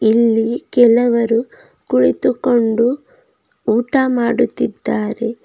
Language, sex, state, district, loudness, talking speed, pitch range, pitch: Kannada, female, Karnataka, Bidar, -16 LUFS, 55 wpm, 230-245 Hz, 235 Hz